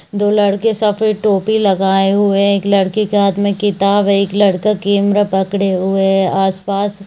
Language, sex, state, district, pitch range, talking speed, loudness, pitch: Hindi, female, Chhattisgarh, Bilaspur, 195-205 Hz, 180 wpm, -14 LUFS, 200 Hz